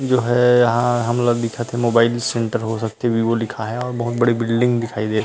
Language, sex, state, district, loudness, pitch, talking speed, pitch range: Chhattisgarhi, male, Chhattisgarh, Rajnandgaon, -19 LUFS, 120 Hz, 240 wpm, 115-120 Hz